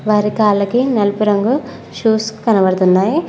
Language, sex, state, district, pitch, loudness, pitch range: Telugu, female, Telangana, Mahabubabad, 210 Hz, -15 LUFS, 200-225 Hz